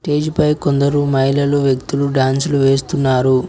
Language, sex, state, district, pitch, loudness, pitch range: Telugu, male, Telangana, Mahabubabad, 140 Hz, -15 LUFS, 135-145 Hz